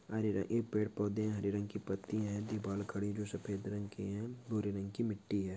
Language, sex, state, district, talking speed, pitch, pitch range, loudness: Hindi, male, Maharashtra, Dhule, 225 wpm, 105 Hz, 100-110 Hz, -39 LUFS